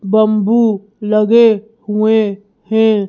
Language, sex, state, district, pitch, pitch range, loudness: Hindi, female, Madhya Pradesh, Bhopal, 215 Hz, 210-220 Hz, -13 LUFS